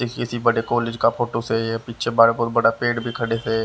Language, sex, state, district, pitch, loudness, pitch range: Hindi, male, Haryana, Rohtak, 115 Hz, -21 LUFS, 115-120 Hz